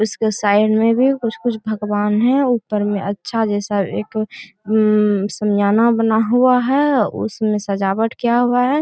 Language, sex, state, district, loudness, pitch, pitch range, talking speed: Hindi, female, Bihar, Bhagalpur, -17 LUFS, 220 Hz, 210-235 Hz, 145 wpm